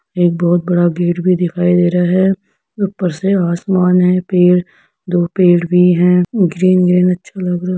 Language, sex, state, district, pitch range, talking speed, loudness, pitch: Hindi, female, Uttar Pradesh, Etah, 175-185 Hz, 155 wpm, -13 LUFS, 180 Hz